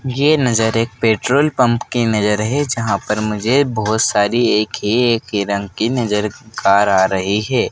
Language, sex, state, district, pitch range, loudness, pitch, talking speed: Hindi, male, Madhya Pradesh, Dhar, 105-125 Hz, -16 LUFS, 110 Hz, 185 wpm